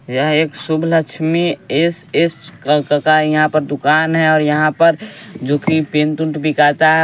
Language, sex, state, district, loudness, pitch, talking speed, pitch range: Hindi, male, Bihar, West Champaran, -15 LUFS, 155 Hz, 155 wpm, 150-165 Hz